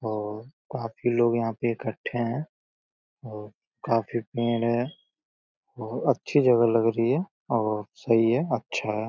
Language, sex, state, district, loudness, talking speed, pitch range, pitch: Hindi, male, Uttar Pradesh, Deoria, -26 LUFS, 145 wpm, 110-120 Hz, 115 Hz